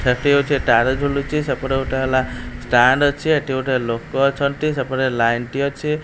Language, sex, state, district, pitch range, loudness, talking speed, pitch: Odia, male, Odisha, Khordha, 130-140 Hz, -19 LUFS, 160 wpm, 135 Hz